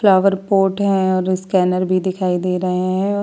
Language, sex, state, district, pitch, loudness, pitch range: Hindi, female, Bihar, Vaishali, 185 Hz, -17 LUFS, 185-195 Hz